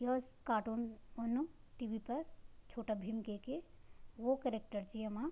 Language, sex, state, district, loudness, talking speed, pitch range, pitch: Garhwali, female, Uttarakhand, Tehri Garhwal, -42 LUFS, 145 wpm, 220-255 Hz, 230 Hz